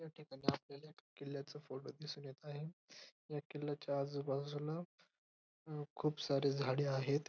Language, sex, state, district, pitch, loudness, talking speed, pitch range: Marathi, male, Maharashtra, Dhule, 145 Hz, -43 LUFS, 140 wpm, 140-150 Hz